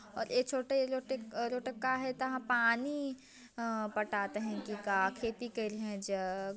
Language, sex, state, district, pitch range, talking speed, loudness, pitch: Chhattisgarhi, female, Chhattisgarh, Jashpur, 210-260 Hz, 165 wpm, -35 LUFS, 235 Hz